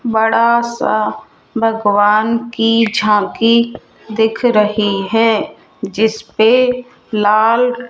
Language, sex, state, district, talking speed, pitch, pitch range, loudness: Hindi, female, Rajasthan, Jaipur, 75 wpm, 225 Hz, 215-235 Hz, -14 LUFS